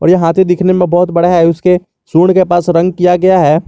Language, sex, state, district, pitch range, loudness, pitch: Hindi, male, Jharkhand, Garhwa, 170-180 Hz, -10 LUFS, 180 Hz